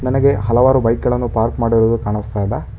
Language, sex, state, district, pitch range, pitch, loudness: Kannada, male, Karnataka, Bangalore, 110-125 Hz, 115 Hz, -16 LUFS